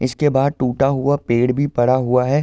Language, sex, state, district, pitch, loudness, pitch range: Hindi, male, Uttar Pradesh, Ghazipur, 135 Hz, -17 LUFS, 125-140 Hz